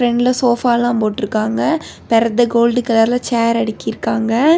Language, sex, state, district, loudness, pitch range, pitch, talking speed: Tamil, female, Tamil Nadu, Kanyakumari, -16 LUFS, 225-245 Hz, 235 Hz, 120 wpm